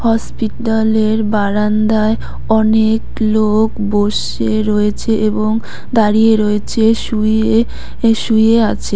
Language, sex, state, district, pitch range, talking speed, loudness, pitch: Bengali, female, West Bengal, Cooch Behar, 215-225 Hz, 80 wpm, -14 LUFS, 220 Hz